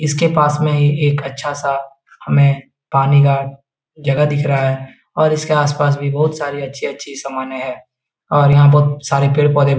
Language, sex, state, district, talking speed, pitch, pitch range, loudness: Hindi, male, Bihar, Jahanabad, 185 wpm, 140 Hz, 135-150 Hz, -15 LUFS